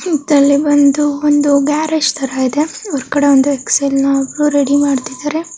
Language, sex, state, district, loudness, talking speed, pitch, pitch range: Kannada, female, Karnataka, Mysore, -13 LUFS, 170 wpm, 285 Hz, 275-300 Hz